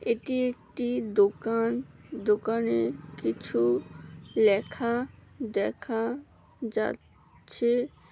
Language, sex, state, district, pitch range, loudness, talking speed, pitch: Bengali, female, West Bengal, Malda, 160-245 Hz, -28 LUFS, 60 wpm, 225 Hz